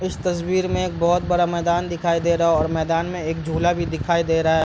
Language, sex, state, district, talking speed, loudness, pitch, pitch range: Hindi, male, Bihar, East Champaran, 270 wpm, -21 LUFS, 170 Hz, 165-175 Hz